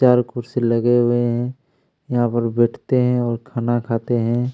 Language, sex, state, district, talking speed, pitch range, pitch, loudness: Hindi, male, Chhattisgarh, Kabirdham, 170 wpm, 120-125 Hz, 120 Hz, -19 LUFS